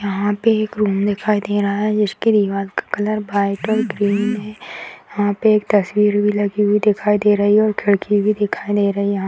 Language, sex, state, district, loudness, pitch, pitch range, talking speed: Hindi, female, Bihar, Madhepura, -17 LUFS, 205 Hz, 205-210 Hz, 235 wpm